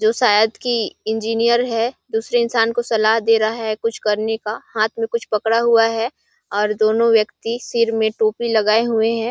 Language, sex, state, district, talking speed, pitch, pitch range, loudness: Hindi, female, Chhattisgarh, Sarguja, 195 wpm, 225 Hz, 220-235 Hz, -18 LUFS